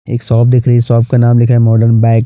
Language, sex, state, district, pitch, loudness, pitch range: Hindi, male, Chhattisgarh, Bastar, 120 Hz, -9 LUFS, 115-120 Hz